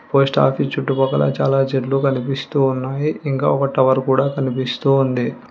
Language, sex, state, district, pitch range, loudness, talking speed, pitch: Telugu, female, Telangana, Hyderabad, 130-135 Hz, -18 LUFS, 140 wpm, 135 Hz